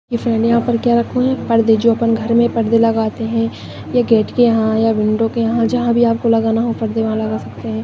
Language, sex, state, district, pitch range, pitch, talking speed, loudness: Hindi, female, Maharashtra, Chandrapur, 225-235 Hz, 230 Hz, 115 wpm, -15 LUFS